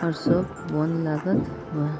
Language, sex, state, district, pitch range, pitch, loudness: Hindi, female, Bihar, Sitamarhi, 150-165 Hz, 155 Hz, -25 LUFS